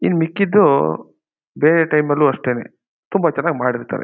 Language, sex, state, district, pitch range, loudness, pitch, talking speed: Kannada, male, Karnataka, Mysore, 135-165 Hz, -17 LUFS, 150 Hz, 135 wpm